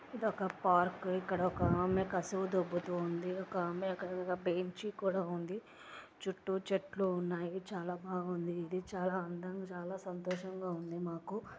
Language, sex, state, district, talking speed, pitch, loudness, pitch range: Telugu, female, Andhra Pradesh, Anantapur, 140 wpm, 185 Hz, -38 LUFS, 175-190 Hz